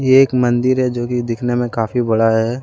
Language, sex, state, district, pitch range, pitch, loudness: Hindi, male, Jharkhand, Deoghar, 115-125 Hz, 120 Hz, -16 LUFS